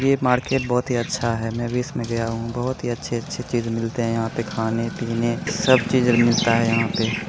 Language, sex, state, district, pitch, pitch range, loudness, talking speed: Hindi, male, Bihar, Jamui, 120 Hz, 115-125 Hz, -22 LUFS, 230 wpm